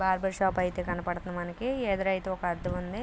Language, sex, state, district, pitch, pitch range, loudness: Telugu, female, Andhra Pradesh, Guntur, 185 Hz, 175-190 Hz, -31 LUFS